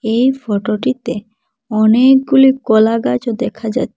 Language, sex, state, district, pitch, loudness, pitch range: Bengali, female, Assam, Hailakandi, 235 Hz, -14 LUFS, 220-260 Hz